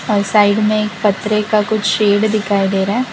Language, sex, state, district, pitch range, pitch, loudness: Hindi, female, Gujarat, Valsad, 205-215 Hz, 210 Hz, -15 LUFS